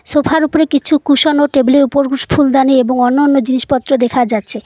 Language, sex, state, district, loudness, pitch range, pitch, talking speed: Bengali, female, West Bengal, Cooch Behar, -12 LUFS, 255-290 Hz, 275 Hz, 195 wpm